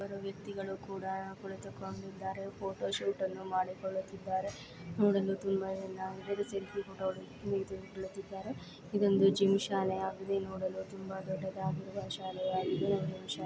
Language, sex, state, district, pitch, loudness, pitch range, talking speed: Kannada, female, Karnataka, Belgaum, 190 Hz, -36 LUFS, 190-195 Hz, 85 wpm